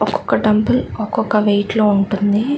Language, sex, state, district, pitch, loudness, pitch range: Telugu, female, Andhra Pradesh, Chittoor, 210 Hz, -16 LUFS, 205-220 Hz